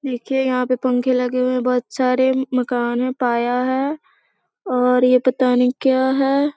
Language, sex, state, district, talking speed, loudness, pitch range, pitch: Hindi, female, Bihar, Sitamarhi, 175 wpm, -18 LUFS, 250-265 Hz, 255 Hz